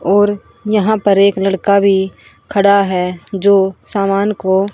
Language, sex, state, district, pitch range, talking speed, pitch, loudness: Hindi, female, Haryana, Rohtak, 190-200 Hz, 140 wpm, 200 Hz, -14 LUFS